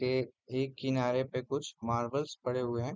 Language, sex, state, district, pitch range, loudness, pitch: Hindi, male, Uttar Pradesh, Deoria, 125-135 Hz, -34 LUFS, 130 Hz